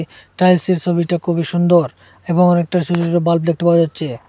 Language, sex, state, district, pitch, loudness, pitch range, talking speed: Bengali, male, Assam, Hailakandi, 170 Hz, -16 LUFS, 165-175 Hz, 170 wpm